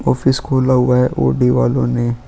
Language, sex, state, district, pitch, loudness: Hindi, male, Goa, North and South Goa, 125 Hz, -15 LUFS